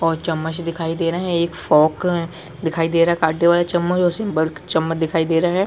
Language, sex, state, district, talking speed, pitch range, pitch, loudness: Hindi, male, Chhattisgarh, Bilaspur, 245 wpm, 160-175 Hz, 165 Hz, -19 LUFS